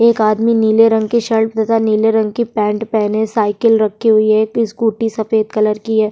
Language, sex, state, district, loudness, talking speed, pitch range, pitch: Hindi, female, Bihar, Kishanganj, -14 LUFS, 215 wpm, 215-225 Hz, 220 Hz